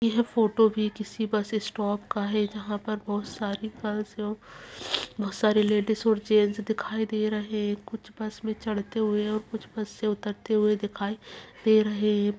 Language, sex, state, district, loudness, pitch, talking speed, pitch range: Hindi, female, Chhattisgarh, Kabirdham, -28 LUFS, 215 Hz, 180 wpm, 210-220 Hz